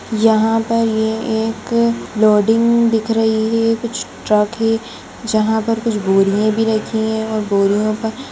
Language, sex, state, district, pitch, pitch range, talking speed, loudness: Hindi, female, Uttarakhand, Tehri Garhwal, 220 Hz, 215-225 Hz, 160 wpm, -16 LUFS